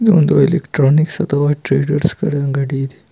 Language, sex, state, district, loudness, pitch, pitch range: Kannada, male, Karnataka, Bidar, -15 LUFS, 145 Hz, 135-165 Hz